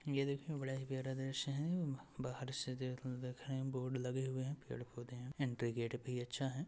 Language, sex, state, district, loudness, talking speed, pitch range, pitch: Hindi, male, Uttar Pradesh, Etah, -43 LUFS, 225 wpm, 125-140 Hz, 130 Hz